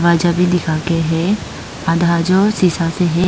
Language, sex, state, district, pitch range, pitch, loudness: Hindi, female, Arunachal Pradesh, Lower Dibang Valley, 165-180 Hz, 170 Hz, -16 LUFS